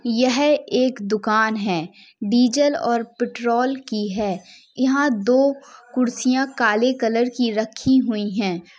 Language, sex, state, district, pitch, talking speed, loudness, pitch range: Hindi, female, Uttar Pradesh, Jalaun, 235 Hz, 125 wpm, -20 LUFS, 215-260 Hz